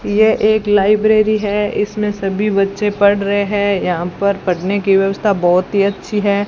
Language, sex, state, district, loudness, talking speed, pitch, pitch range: Hindi, female, Rajasthan, Bikaner, -15 LUFS, 175 wpm, 200 Hz, 195-210 Hz